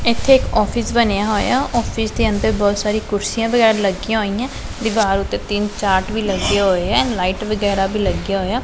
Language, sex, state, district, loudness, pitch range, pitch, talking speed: Punjabi, female, Punjab, Pathankot, -18 LUFS, 200-225 Hz, 210 Hz, 190 wpm